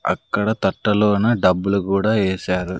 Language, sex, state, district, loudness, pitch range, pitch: Telugu, male, Andhra Pradesh, Sri Satya Sai, -19 LUFS, 95-105 Hz, 100 Hz